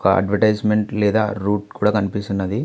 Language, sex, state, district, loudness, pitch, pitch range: Telugu, male, Andhra Pradesh, Visakhapatnam, -19 LUFS, 105 Hz, 100-105 Hz